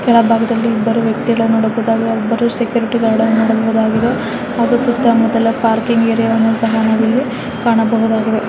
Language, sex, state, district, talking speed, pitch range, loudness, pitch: Kannada, female, Karnataka, Mysore, 125 wpm, 225-235 Hz, -14 LUFS, 230 Hz